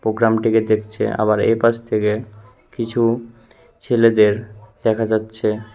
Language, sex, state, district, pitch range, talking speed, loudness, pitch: Bengali, male, Tripura, West Tripura, 105-115 Hz, 105 wpm, -18 LUFS, 110 Hz